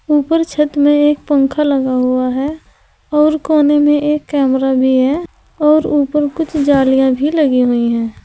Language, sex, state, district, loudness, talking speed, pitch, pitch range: Hindi, female, Uttar Pradesh, Saharanpur, -13 LUFS, 165 wpm, 290 Hz, 265-300 Hz